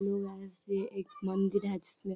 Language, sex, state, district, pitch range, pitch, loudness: Hindi, female, Bihar, Darbhanga, 190-200 Hz, 195 Hz, -35 LUFS